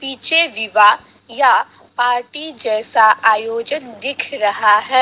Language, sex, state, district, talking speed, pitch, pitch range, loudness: Hindi, female, Assam, Sonitpur, 110 wpm, 230 Hz, 215-270 Hz, -15 LUFS